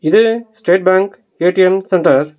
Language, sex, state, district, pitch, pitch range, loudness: Tamil, male, Tamil Nadu, Nilgiris, 185 Hz, 180-195 Hz, -13 LUFS